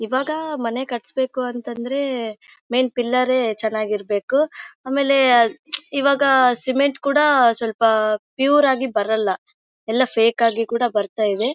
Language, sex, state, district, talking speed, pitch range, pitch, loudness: Kannada, female, Karnataka, Bellary, 110 wpm, 225-270 Hz, 245 Hz, -19 LUFS